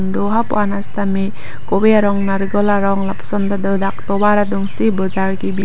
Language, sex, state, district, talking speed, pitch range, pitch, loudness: Karbi, female, Assam, Karbi Anglong, 170 wpm, 195-205 Hz, 200 Hz, -17 LUFS